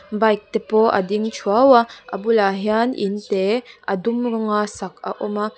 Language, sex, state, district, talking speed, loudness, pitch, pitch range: Mizo, female, Mizoram, Aizawl, 195 wpm, -19 LUFS, 215 Hz, 205-230 Hz